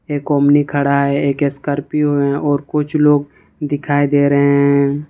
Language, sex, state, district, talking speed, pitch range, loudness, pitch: Hindi, male, Jharkhand, Ranchi, 165 wpm, 140-145 Hz, -15 LUFS, 145 Hz